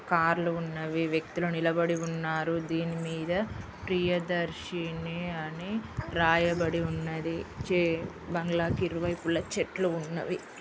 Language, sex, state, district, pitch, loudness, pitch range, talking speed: Telugu, female, Andhra Pradesh, Guntur, 165 Hz, -30 LUFS, 165-175 Hz, 60 wpm